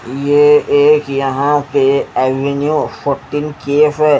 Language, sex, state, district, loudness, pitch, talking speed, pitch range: Hindi, male, Haryana, Jhajjar, -13 LUFS, 145 Hz, 115 wpm, 140-150 Hz